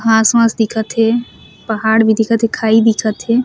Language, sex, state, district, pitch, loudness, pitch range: Surgujia, female, Chhattisgarh, Sarguja, 225 Hz, -14 LUFS, 220-230 Hz